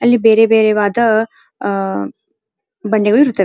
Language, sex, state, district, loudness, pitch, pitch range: Kannada, female, Karnataka, Dharwad, -14 LUFS, 220 Hz, 205-225 Hz